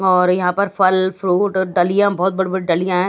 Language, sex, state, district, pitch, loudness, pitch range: Hindi, female, Haryana, Rohtak, 185 Hz, -17 LUFS, 180-190 Hz